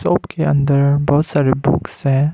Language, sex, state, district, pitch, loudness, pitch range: Hindi, male, Arunachal Pradesh, Lower Dibang Valley, 145 Hz, -16 LUFS, 140-145 Hz